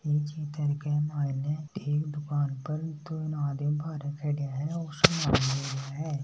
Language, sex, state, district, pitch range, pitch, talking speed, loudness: Hindi, male, Rajasthan, Nagaur, 145-155 Hz, 150 Hz, 145 wpm, -30 LUFS